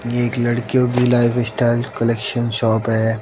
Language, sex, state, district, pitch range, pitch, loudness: Hindi, male, Haryana, Jhajjar, 115-120 Hz, 120 Hz, -18 LUFS